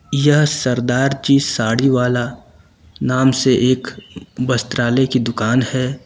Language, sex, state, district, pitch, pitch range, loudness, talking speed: Hindi, male, Uttar Pradesh, Lucknow, 130 Hz, 125-135 Hz, -16 LUFS, 120 wpm